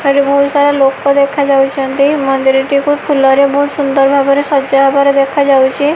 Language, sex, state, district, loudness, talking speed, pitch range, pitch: Odia, female, Odisha, Malkangiri, -11 LUFS, 150 wpm, 275-285 Hz, 280 Hz